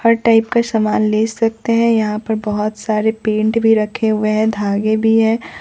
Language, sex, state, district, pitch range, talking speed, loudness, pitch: Hindi, male, Bihar, Katihar, 215-225 Hz, 190 wpm, -16 LUFS, 220 Hz